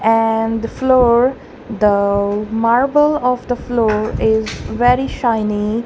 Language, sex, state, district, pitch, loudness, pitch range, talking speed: English, female, Punjab, Kapurthala, 230 Hz, -16 LUFS, 220-245 Hz, 100 wpm